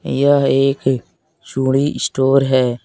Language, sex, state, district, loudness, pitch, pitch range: Hindi, male, Jharkhand, Deoghar, -16 LUFS, 135 Hz, 130-135 Hz